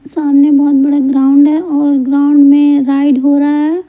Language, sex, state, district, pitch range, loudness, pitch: Hindi, female, Bihar, Patna, 280-290 Hz, -9 LUFS, 285 Hz